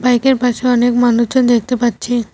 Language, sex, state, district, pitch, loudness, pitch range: Bengali, female, West Bengal, Cooch Behar, 245 Hz, -14 LUFS, 240-250 Hz